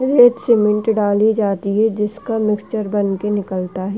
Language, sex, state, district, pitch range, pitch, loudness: Hindi, female, Uttar Pradesh, Hamirpur, 205-225 Hz, 210 Hz, -17 LUFS